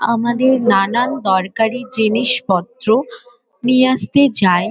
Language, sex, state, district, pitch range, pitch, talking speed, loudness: Bengali, female, West Bengal, Kolkata, 215-255 Hz, 240 Hz, 90 wpm, -15 LUFS